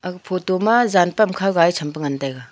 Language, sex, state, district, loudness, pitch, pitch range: Wancho, female, Arunachal Pradesh, Longding, -19 LUFS, 180 Hz, 150-190 Hz